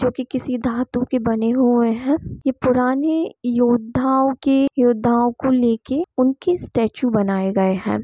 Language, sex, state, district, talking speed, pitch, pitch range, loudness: Hindi, female, Bihar, Gopalganj, 155 wpm, 250 Hz, 235-265 Hz, -19 LUFS